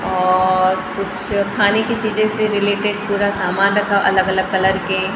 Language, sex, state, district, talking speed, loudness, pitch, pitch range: Hindi, female, Maharashtra, Gondia, 175 wpm, -17 LUFS, 200 Hz, 190-205 Hz